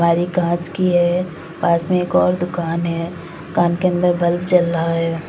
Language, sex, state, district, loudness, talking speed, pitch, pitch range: Hindi, female, Uttar Pradesh, Saharanpur, -18 LUFS, 195 wpm, 170 Hz, 165-180 Hz